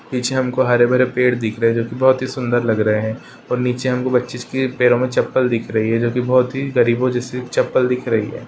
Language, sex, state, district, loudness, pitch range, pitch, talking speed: Hindi, male, Uttar Pradesh, Ghazipur, -18 LUFS, 120-130 Hz, 125 Hz, 250 wpm